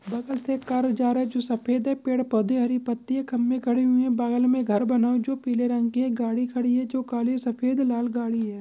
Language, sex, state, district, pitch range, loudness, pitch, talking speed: Hindi, male, Goa, North and South Goa, 240-255 Hz, -25 LUFS, 245 Hz, 270 wpm